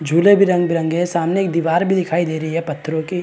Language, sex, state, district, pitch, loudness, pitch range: Hindi, male, Chhattisgarh, Bilaspur, 170 Hz, -17 LUFS, 160-180 Hz